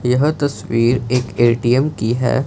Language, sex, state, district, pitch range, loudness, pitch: Hindi, male, Punjab, Fazilka, 120-135 Hz, -17 LUFS, 125 Hz